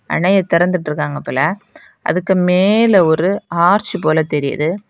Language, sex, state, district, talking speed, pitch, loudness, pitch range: Tamil, female, Tamil Nadu, Kanyakumari, 120 wpm, 180 Hz, -15 LUFS, 155-195 Hz